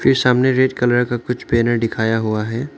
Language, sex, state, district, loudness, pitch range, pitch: Hindi, male, Arunachal Pradesh, Lower Dibang Valley, -17 LUFS, 115-125 Hz, 120 Hz